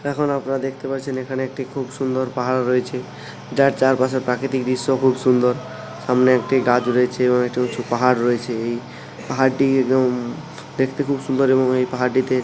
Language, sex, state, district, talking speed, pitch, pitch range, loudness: Bengali, male, West Bengal, Paschim Medinipur, 165 wpm, 130 Hz, 125-135 Hz, -20 LUFS